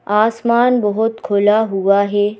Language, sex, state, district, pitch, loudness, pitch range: Hindi, female, Madhya Pradesh, Bhopal, 210 Hz, -15 LUFS, 205-225 Hz